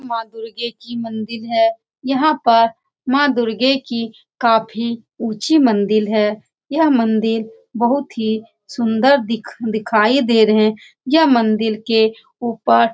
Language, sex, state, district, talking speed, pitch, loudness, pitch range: Hindi, female, Bihar, Saran, 135 wpm, 230 Hz, -17 LUFS, 220-260 Hz